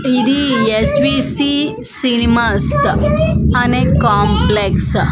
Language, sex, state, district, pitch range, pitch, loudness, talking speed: Telugu, female, Andhra Pradesh, Manyam, 235-285 Hz, 265 Hz, -13 LUFS, 70 wpm